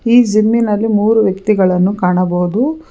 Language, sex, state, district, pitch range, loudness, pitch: Kannada, female, Karnataka, Bangalore, 185-230 Hz, -13 LUFS, 210 Hz